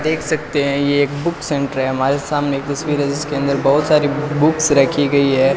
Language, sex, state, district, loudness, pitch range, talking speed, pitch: Hindi, male, Rajasthan, Bikaner, -17 LUFS, 140-150 Hz, 225 wpm, 145 Hz